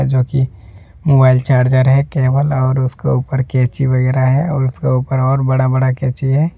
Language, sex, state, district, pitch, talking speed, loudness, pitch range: Hindi, male, Jharkhand, Deoghar, 130 Hz, 175 wpm, -14 LUFS, 130-135 Hz